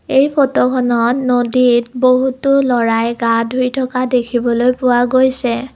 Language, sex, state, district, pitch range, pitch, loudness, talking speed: Assamese, female, Assam, Kamrup Metropolitan, 240-255 Hz, 250 Hz, -14 LUFS, 115 wpm